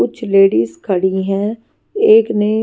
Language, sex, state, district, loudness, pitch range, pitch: Hindi, female, Maharashtra, Washim, -14 LUFS, 190-220 Hz, 200 Hz